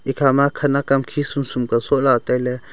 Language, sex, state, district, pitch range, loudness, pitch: Wancho, male, Arunachal Pradesh, Longding, 125-140 Hz, -19 LUFS, 135 Hz